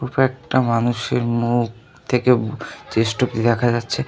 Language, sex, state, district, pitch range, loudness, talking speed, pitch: Bengali, male, West Bengal, North 24 Parganas, 115-125 Hz, -20 LUFS, 130 wpm, 120 Hz